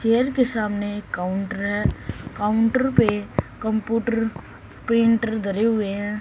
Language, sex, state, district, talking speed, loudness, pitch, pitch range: Hindi, female, Haryana, Charkhi Dadri, 115 wpm, -22 LUFS, 220 Hz, 205-230 Hz